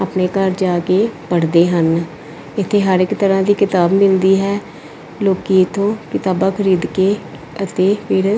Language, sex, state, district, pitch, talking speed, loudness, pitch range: Punjabi, female, Punjab, Pathankot, 190 Hz, 150 wpm, -16 LUFS, 175-200 Hz